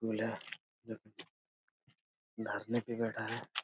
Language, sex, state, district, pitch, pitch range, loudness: Hindi, male, Bihar, Lakhisarai, 110 Hz, 110-115 Hz, -40 LUFS